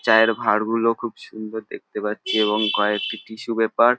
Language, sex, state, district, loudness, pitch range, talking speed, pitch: Bengali, male, West Bengal, North 24 Parganas, -22 LUFS, 105-115 Hz, 165 wpm, 110 Hz